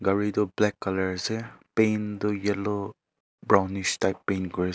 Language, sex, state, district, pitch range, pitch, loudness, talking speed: Nagamese, male, Nagaland, Kohima, 95-105 Hz, 100 Hz, -27 LUFS, 65 wpm